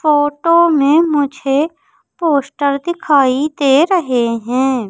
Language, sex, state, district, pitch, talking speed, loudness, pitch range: Hindi, female, Madhya Pradesh, Umaria, 290 Hz, 100 wpm, -14 LUFS, 270-330 Hz